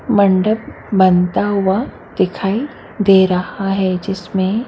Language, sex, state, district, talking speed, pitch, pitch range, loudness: Hindi, female, Maharashtra, Mumbai Suburban, 105 wpm, 195 Hz, 185-210 Hz, -16 LUFS